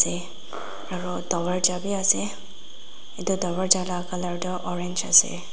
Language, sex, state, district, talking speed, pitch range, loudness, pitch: Nagamese, female, Nagaland, Dimapur, 120 wpm, 175-185 Hz, -23 LUFS, 180 Hz